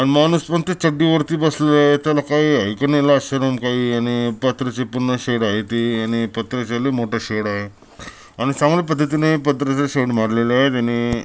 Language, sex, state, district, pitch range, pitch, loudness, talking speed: Marathi, male, Maharashtra, Chandrapur, 120-150 Hz, 130 Hz, -18 LUFS, 175 wpm